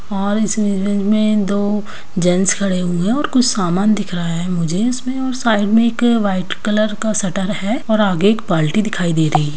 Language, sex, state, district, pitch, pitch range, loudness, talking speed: Hindi, female, Bihar, Kishanganj, 205 Hz, 185-215 Hz, -17 LUFS, 215 wpm